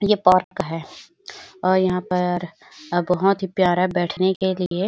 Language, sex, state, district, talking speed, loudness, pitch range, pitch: Hindi, female, Chhattisgarh, Bilaspur, 160 wpm, -21 LUFS, 180-190 Hz, 185 Hz